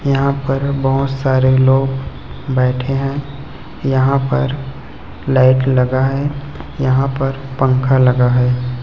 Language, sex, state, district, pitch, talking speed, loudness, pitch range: Hindi, male, Chhattisgarh, Raipur, 135 Hz, 115 wpm, -15 LUFS, 130-135 Hz